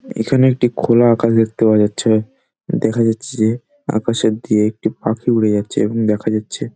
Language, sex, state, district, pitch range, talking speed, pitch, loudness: Bengali, male, West Bengal, Dakshin Dinajpur, 110-120 Hz, 160 wpm, 110 Hz, -16 LUFS